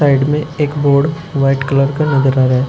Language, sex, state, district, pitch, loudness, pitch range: Hindi, male, Uttar Pradesh, Shamli, 140 Hz, -14 LUFS, 135-150 Hz